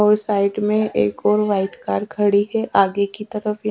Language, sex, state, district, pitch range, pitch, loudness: Hindi, female, Haryana, Charkhi Dadri, 200-210 Hz, 210 Hz, -19 LUFS